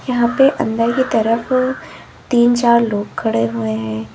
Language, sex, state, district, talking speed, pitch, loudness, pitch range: Hindi, female, Uttar Pradesh, Lalitpur, 160 wpm, 235 Hz, -16 LUFS, 180-250 Hz